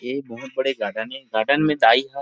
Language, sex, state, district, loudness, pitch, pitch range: Chhattisgarhi, male, Chhattisgarh, Rajnandgaon, -21 LUFS, 135 Hz, 115-140 Hz